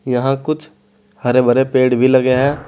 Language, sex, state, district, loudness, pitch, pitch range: Hindi, male, Uttar Pradesh, Saharanpur, -15 LUFS, 130 Hz, 130-150 Hz